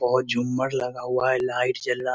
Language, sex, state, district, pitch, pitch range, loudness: Hindi, male, Bihar, Muzaffarpur, 125 Hz, 125-130 Hz, -25 LUFS